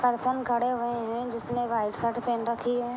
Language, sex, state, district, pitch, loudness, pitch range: Hindi, female, Jharkhand, Jamtara, 240 Hz, -29 LUFS, 235-245 Hz